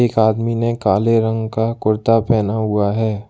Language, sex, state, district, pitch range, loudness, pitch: Hindi, male, Jharkhand, Ranchi, 110-115 Hz, -17 LUFS, 110 Hz